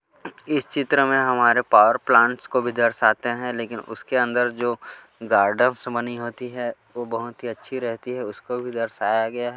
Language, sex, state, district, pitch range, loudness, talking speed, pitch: Hindi, male, Chhattisgarh, Korba, 115-125 Hz, -22 LUFS, 180 wpm, 120 Hz